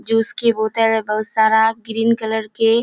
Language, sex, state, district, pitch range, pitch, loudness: Hindi, female, Bihar, Kishanganj, 220-225 Hz, 225 Hz, -17 LUFS